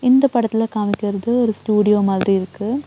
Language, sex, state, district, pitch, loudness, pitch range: Tamil, female, Tamil Nadu, Nilgiris, 215 Hz, -18 LUFS, 205-240 Hz